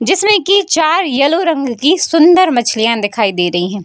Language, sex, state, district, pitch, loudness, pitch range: Hindi, female, Bihar, Darbhanga, 310 Hz, -12 LUFS, 225-360 Hz